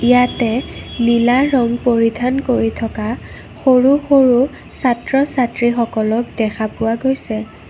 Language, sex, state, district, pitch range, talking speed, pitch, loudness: Assamese, female, Assam, Kamrup Metropolitan, 225-255 Hz, 95 wpm, 240 Hz, -16 LUFS